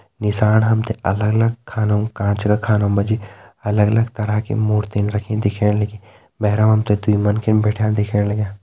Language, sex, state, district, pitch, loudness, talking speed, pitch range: Hindi, male, Uttarakhand, Tehri Garhwal, 105 Hz, -18 LUFS, 195 wpm, 105-110 Hz